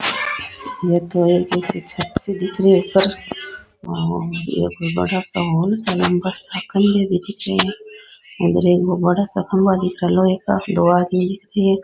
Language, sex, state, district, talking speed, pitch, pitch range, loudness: Rajasthani, female, Rajasthan, Nagaur, 85 wpm, 185 Hz, 175-195 Hz, -18 LUFS